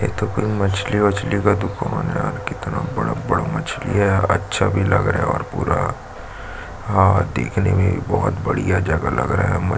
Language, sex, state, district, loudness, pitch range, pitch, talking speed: Hindi, male, Chhattisgarh, Jashpur, -20 LUFS, 90-105 Hz, 100 Hz, 195 wpm